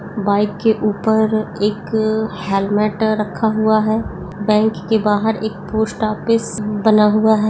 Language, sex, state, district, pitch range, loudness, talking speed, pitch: Hindi, female, Bihar, Darbhanga, 210-220 Hz, -17 LUFS, 135 wpm, 215 Hz